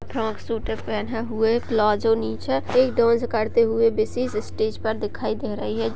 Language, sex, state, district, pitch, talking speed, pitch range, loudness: Hindi, female, Uttar Pradesh, Jyotiba Phule Nagar, 220 Hz, 160 wpm, 215-230 Hz, -23 LUFS